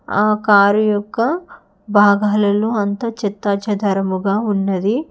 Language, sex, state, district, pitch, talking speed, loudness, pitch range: Telugu, female, Telangana, Hyderabad, 205 Hz, 80 wpm, -16 LUFS, 200-215 Hz